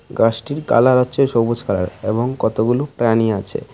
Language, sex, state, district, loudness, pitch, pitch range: Bengali, male, Tripura, West Tripura, -17 LUFS, 115 Hz, 110-125 Hz